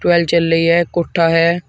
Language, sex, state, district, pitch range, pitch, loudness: Hindi, male, Uttar Pradesh, Shamli, 165-170 Hz, 170 Hz, -14 LUFS